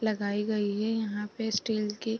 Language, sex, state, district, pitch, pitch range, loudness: Hindi, female, Bihar, East Champaran, 215 Hz, 210-220 Hz, -30 LUFS